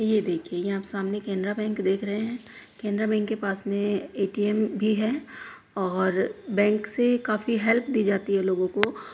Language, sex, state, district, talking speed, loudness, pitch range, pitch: Hindi, female, Uttar Pradesh, Hamirpur, 185 wpm, -26 LUFS, 195-220 Hz, 210 Hz